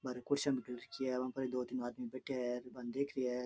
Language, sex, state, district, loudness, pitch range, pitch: Rajasthani, male, Rajasthan, Churu, -40 LUFS, 125-130 Hz, 125 Hz